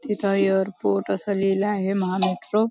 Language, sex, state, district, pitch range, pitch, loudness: Marathi, female, Maharashtra, Nagpur, 185-205 Hz, 195 Hz, -23 LUFS